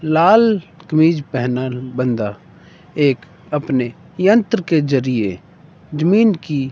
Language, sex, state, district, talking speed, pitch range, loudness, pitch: Hindi, male, Himachal Pradesh, Shimla, 100 wpm, 130-175 Hz, -17 LUFS, 155 Hz